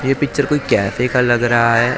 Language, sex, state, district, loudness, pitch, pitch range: Hindi, male, Maharashtra, Mumbai Suburban, -16 LUFS, 125 Hz, 120-135 Hz